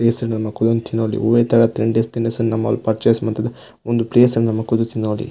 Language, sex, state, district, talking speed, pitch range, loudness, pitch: Tulu, male, Karnataka, Dakshina Kannada, 205 wpm, 110-115 Hz, -18 LUFS, 115 Hz